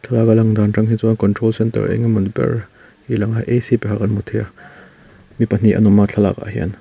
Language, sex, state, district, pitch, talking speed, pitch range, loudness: Mizo, male, Mizoram, Aizawl, 110 Hz, 230 wpm, 105-115 Hz, -16 LUFS